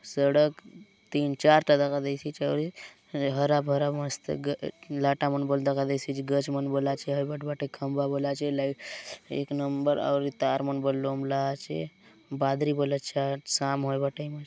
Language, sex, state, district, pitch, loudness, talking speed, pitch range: Halbi, male, Chhattisgarh, Bastar, 140 Hz, -28 LUFS, 155 wpm, 140-145 Hz